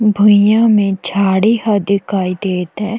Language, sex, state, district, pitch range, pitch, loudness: Chhattisgarhi, female, Chhattisgarh, Jashpur, 195-210 Hz, 200 Hz, -13 LUFS